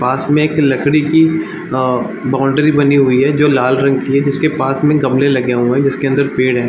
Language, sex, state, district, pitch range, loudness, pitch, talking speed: Hindi, male, Bihar, Darbhanga, 130-150 Hz, -13 LUFS, 140 Hz, 240 wpm